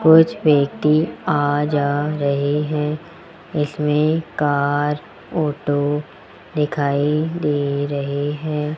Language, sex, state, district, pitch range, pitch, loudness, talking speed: Hindi, male, Rajasthan, Jaipur, 145-155 Hz, 150 Hz, -20 LUFS, 90 wpm